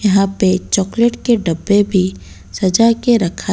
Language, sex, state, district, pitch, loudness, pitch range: Hindi, female, Odisha, Malkangiri, 195 Hz, -15 LUFS, 190-230 Hz